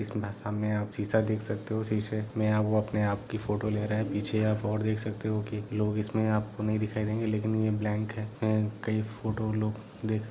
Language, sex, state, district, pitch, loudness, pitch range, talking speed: Hindi, male, Jharkhand, Sahebganj, 110 Hz, -30 LUFS, 105-110 Hz, 220 wpm